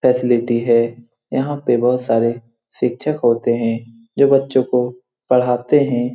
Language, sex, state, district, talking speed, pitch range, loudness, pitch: Hindi, male, Bihar, Lakhisarai, 135 wpm, 115-125 Hz, -17 LUFS, 125 Hz